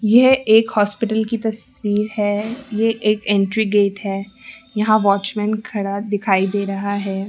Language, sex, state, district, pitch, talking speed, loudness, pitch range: Hindi, female, Rajasthan, Jaipur, 210 Hz, 150 wpm, -18 LUFS, 200-220 Hz